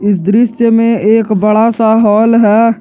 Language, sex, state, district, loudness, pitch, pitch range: Hindi, male, Jharkhand, Garhwa, -9 LUFS, 220 Hz, 210-230 Hz